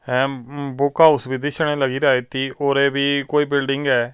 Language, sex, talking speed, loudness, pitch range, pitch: Punjabi, male, 175 wpm, -19 LUFS, 135-145 Hz, 140 Hz